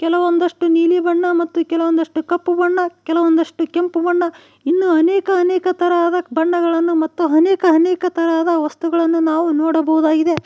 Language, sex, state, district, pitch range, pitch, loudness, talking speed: Kannada, female, Karnataka, Koppal, 325-350 Hz, 335 Hz, -16 LUFS, 130 wpm